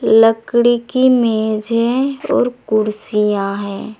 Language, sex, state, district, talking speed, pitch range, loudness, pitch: Hindi, female, Uttar Pradesh, Saharanpur, 105 wpm, 215-240 Hz, -16 LUFS, 225 Hz